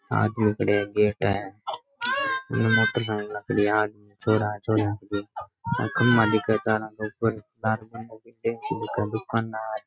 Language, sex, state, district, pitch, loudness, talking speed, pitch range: Rajasthani, male, Rajasthan, Nagaur, 110 Hz, -25 LUFS, 80 wpm, 105-115 Hz